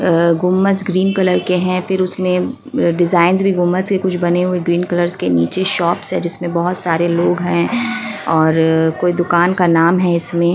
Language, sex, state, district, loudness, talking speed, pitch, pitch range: Hindi, female, Bihar, Kishanganj, -15 LUFS, 185 wpm, 175 Hz, 170-185 Hz